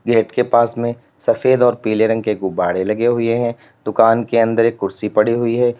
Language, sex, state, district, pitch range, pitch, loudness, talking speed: Hindi, male, Uttar Pradesh, Lalitpur, 110-120 Hz, 115 Hz, -17 LUFS, 215 wpm